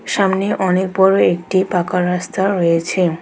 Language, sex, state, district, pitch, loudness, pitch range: Bengali, female, West Bengal, Alipurduar, 185 Hz, -16 LUFS, 175-190 Hz